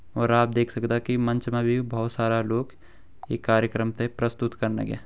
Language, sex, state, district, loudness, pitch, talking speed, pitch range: Garhwali, male, Uttarakhand, Uttarkashi, -25 LUFS, 120 Hz, 200 wpm, 115-120 Hz